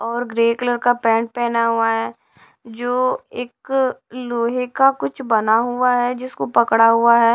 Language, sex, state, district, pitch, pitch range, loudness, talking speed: Hindi, female, Odisha, Sambalpur, 240 Hz, 230-250 Hz, -18 LUFS, 165 wpm